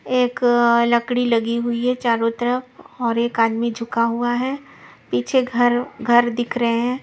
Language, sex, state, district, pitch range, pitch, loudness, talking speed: Hindi, female, Punjab, Pathankot, 235-245 Hz, 240 Hz, -19 LUFS, 170 wpm